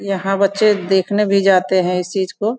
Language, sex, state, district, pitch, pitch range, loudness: Hindi, female, Uttar Pradesh, Gorakhpur, 195 Hz, 190-205 Hz, -16 LUFS